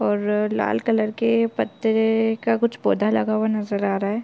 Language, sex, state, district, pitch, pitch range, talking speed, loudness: Hindi, female, Chhattisgarh, Korba, 220 Hz, 210-230 Hz, 225 wpm, -21 LUFS